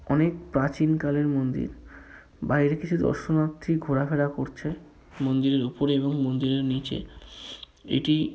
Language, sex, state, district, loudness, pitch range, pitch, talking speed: Bengali, male, West Bengal, Paschim Medinipur, -26 LUFS, 135-155 Hz, 145 Hz, 110 wpm